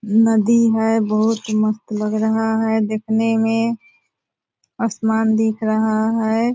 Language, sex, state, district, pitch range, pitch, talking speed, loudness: Hindi, female, Bihar, Purnia, 220-225 Hz, 220 Hz, 120 wpm, -18 LUFS